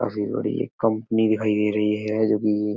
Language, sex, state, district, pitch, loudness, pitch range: Hindi, male, Uttar Pradesh, Etah, 105 Hz, -23 LUFS, 105-110 Hz